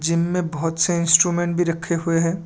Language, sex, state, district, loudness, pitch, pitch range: Hindi, male, Assam, Kamrup Metropolitan, -19 LUFS, 170 Hz, 165-175 Hz